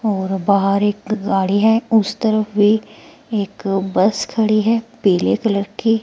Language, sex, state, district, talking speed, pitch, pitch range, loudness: Hindi, female, Himachal Pradesh, Shimla, 150 wpm, 210 Hz, 200-220 Hz, -17 LUFS